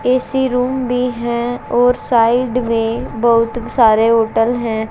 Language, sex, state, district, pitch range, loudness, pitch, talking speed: Hindi, female, Haryana, Jhajjar, 230-250 Hz, -15 LUFS, 235 Hz, 135 wpm